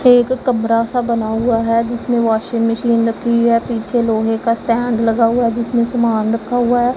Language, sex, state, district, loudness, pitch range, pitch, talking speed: Hindi, female, Punjab, Pathankot, -16 LUFS, 230-240 Hz, 230 Hz, 190 wpm